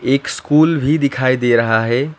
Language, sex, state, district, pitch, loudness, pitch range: Hindi, male, West Bengal, Alipurduar, 135 Hz, -15 LUFS, 120-145 Hz